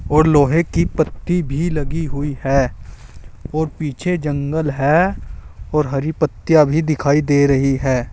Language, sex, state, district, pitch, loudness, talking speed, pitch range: Hindi, male, Uttar Pradesh, Saharanpur, 145 Hz, -17 LUFS, 150 wpm, 135-155 Hz